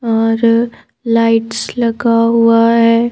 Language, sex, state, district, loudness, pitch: Hindi, female, Madhya Pradesh, Bhopal, -12 LUFS, 230 Hz